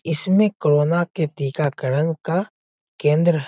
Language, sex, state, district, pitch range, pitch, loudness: Hindi, male, Bihar, Sitamarhi, 150-175 Hz, 160 Hz, -20 LUFS